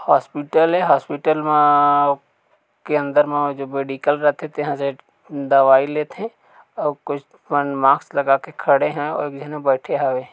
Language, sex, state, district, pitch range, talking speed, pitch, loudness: Chhattisgarhi, male, Chhattisgarh, Korba, 140-150 Hz, 155 wpm, 145 Hz, -19 LUFS